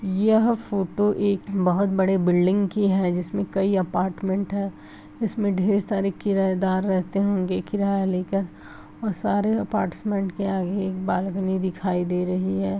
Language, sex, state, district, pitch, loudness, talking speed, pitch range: Hindi, female, Bihar, Araria, 195 Hz, -24 LUFS, 135 wpm, 185-200 Hz